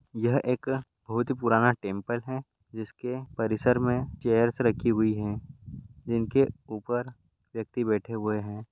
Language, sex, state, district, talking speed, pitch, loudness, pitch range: Hindi, male, Rajasthan, Churu, 140 wpm, 115 Hz, -28 LUFS, 110-125 Hz